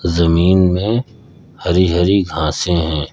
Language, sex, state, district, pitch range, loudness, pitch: Hindi, male, Uttar Pradesh, Lucknow, 85-95 Hz, -15 LUFS, 90 Hz